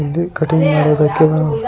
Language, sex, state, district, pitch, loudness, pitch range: Kannada, female, Karnataka, Chamarajanagar, 150 Hz, -14 LUFS, 150-160 Hz